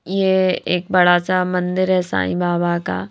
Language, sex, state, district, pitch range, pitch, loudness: Hindi, female, Haryana, Rohtak, 175-185 Hz, 180 Hz, -18 LUFS